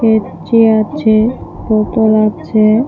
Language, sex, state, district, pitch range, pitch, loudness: Bengali, female, Tripura, West Tripura, 215-225 Hz, 220 Hz, -12 LUFS